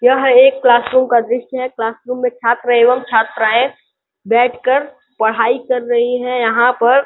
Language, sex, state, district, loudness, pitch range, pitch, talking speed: Hindi, male, Uttar Pradesh, Gorakhpur, -14 LUFS, 235-255 Hz, 245 Hz, 160 wpm